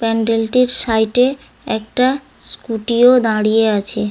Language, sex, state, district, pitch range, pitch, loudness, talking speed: Bengali, female, West Bengal, Paschim Medinipur, 220-250 Hz, 225 Hz, -14 LUFS, 130 wpm